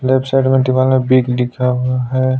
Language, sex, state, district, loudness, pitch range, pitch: Hindi, male, Chhattisgarh, Sukma, -15 LUFS, 125-130 Hz, 130 Hz